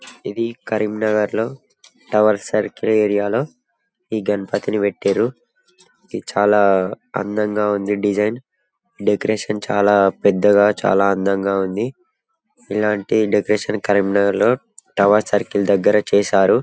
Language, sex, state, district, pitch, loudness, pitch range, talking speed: Telugu, male, Telangana, Karimnagar, 105 Hz, -18 LUFS, 100-110 Hz, 110 wpm